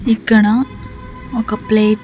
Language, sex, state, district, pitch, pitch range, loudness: Telugu, female, Andhra Pradesh, Sri Satya Sai, 220 Hz, 215-230 Hz, -15 LUFS